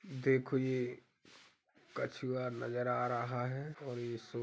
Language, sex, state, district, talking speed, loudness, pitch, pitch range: Hindi, male, Uttar Pradesh, Hamirpur, 160 wpm, -38 LUFS, 125 Hz, 120-130 Hz